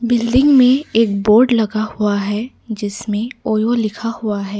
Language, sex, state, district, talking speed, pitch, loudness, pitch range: Hindi, female, Assam, Kamrup Metropolitan, 155 wpm, 220 Hz, -16 LUFS, 210-235 Hz